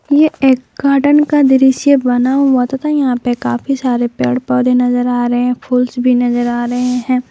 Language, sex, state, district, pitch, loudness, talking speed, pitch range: Hindi, female, Jharkhand, Palamu, 250 Hz, -13 LUFS, 195 wpm, 245-270 Hz